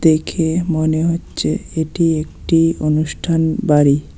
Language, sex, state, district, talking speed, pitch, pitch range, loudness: Bengali, male, West Bengal, Alipurduar, 100 wpm, 160 Hz, 155-165 Hz, -17 LUFS